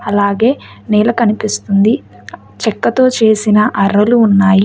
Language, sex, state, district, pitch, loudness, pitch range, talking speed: Telugu, female, Telangana, Hyderabad, 215 Hz, -12 LUFS, 200-230 Hz, 90 wpm